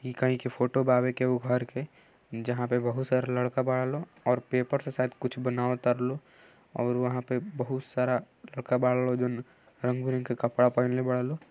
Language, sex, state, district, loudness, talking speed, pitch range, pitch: Bhojpuri, male, Uttar Pradesh, Gorakhpur, -29 LUFS, 210 wpm, 125-130 Hz, 125 Hz